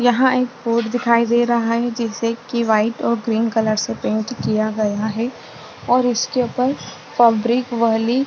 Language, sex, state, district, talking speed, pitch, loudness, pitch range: Hindi, female, Maharashtra, Chandrapur, 165 wpm, 235 Hz, -19 LUFS, 225-245 Hz